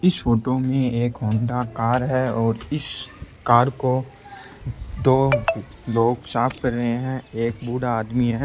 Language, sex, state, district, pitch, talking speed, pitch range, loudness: Rajasthani, male, Rajasthan, Churu, 125 Hz, 150 wpm, 115-130 Hz, -22 LUFS